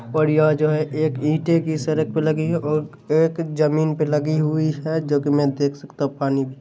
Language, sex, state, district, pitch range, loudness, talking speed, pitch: Hindi, male, Bihar, Saharsa, 145-155 Hz, -21 LUFS, 225 wpm, 155 Hz